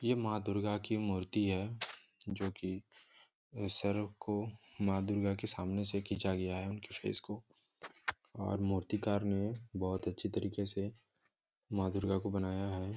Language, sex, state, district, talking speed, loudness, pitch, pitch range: Hindi, male, Jharkhand, Jamtara, 150 wpm, -38 LUFS, 100 Hz, 95-105 Hz